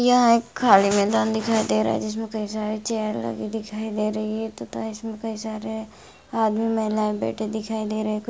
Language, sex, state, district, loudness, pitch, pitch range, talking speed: Hindi, female, Bihar, Purnia, -24 LUFS, 215 Hz, 205-220 Hz, 355 wpm